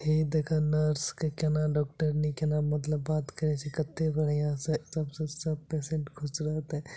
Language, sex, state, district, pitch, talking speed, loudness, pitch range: Maithili, male, Bihar, Supaul, 155 Hz, 170 wpm, -30 LUFS, 150-155 Hz